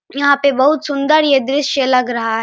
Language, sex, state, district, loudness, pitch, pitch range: Hindi, male, Bihar, Saharsa, -14 LUFS, 280 Hz, 260-285 Hz